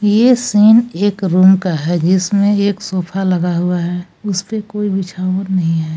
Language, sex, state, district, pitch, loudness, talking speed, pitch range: Hindi, female, Jharkhand, Palamu, 190 Hz, -14 LUFS, 180 wpm, 180-205 Hz